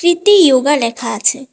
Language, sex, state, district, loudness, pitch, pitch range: Bengali, female, Tripura, West Tripura, -12 LUFS, 280 Hz, 260-345 Hz